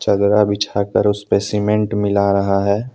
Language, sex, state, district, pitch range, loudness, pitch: Hindi, male, Jharkhand, Deoghar, 100-105 Hz, -17 LUFS, 100 Hz